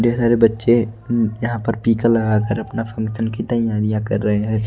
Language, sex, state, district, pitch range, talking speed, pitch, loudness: Hindi, male, Odisha, Nuapada, 110-115 Hz, 190 wpm, 115 Hz, -19 LUFS